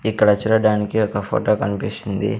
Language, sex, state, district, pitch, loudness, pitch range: Telugu, male, Andhra Pradesh, Sri Satya Sai, 105 Hz, -19 LUFS, 100-110 Hz